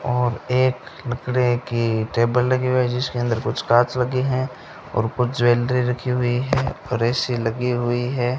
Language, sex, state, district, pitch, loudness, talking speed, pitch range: Hindi, male, Rajasthan, Bikaner, 125 Hz, -21 LUFS, 180 wpm, 120-125 Hz